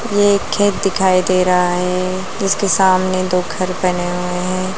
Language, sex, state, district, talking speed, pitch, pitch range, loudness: Hindi, female, Bihar, Lakhisarai, 175 wpm, 185 Hz, 180-195 Hz, -16 LUFS